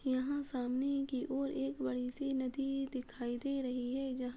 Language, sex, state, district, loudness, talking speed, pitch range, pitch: Hindi, female, Uttar Pradesh, Muzaffarnagar, -38 LUFS, 205 wpm, 250-275 Hz, 260 Hz